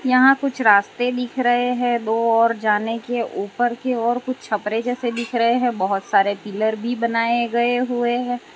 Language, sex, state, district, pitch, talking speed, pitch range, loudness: Hindi, female, Gujarat, Valsad, 235 Hz, 190 wpm, 225-245 Hz, -20 LUFS